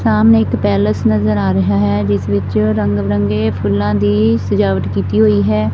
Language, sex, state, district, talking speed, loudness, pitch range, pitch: Punjabi, female, Punjab, Fazilka, 180 wpm, -14 LUFS, 100-105 Hz, 105 Hz